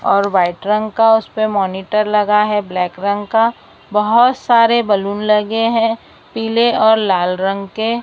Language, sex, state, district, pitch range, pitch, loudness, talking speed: Hindi, female, Maharashtra, Mumbai Suburban, 200-225 Hz, 210 Hz, -15 LUFS, 155 wpm